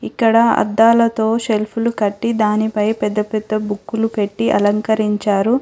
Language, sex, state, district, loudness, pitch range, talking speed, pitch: Telugu, female, Telangana, Hyderabad, -16 LUFS, 210-225 Hz, 105 wpm, 215 Hz